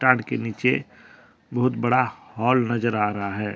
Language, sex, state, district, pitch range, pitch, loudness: Hindi, male, Jharkhand, Deoghar, 110-125 Hz, 120 Hz, -23 LUFS